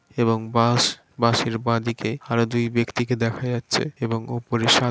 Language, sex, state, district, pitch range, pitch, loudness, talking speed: Bengali, male, West Bengal, Dakshin Dinajpur, 115-120 Hz, 115 Hz, -22 LUFS, 185 wpm